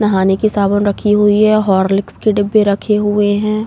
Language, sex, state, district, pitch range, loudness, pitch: Hindi, female, Uttar Pradesh, Jalaun, 200-215 Hz, -13 LUFS, 205 Hz